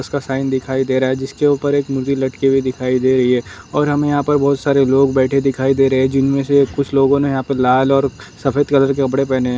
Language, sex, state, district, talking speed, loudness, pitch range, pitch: Hindi, male, Maharashtra, Nagpur, 265 wpm, -16 LUFS, 130-140 Hz, 135 Hz